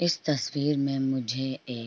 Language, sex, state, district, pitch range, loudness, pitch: Hindi, female, Uttar Pradesh, Varanasi, 130-150 Hz, -28 LUFS, 135 Hz